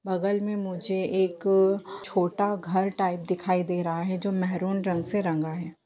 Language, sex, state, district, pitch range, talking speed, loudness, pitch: Hindi, female, Jharkhand, Jamtara, 180-195 Hz, 175 wpm, -27 LUFS, 185 Hz